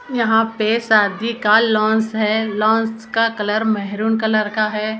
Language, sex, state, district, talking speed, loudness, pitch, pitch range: Hindi, female, Maharashtra, Gondia, 165 wpm, -17 LUFS, 220 Hz, 215-225 Hz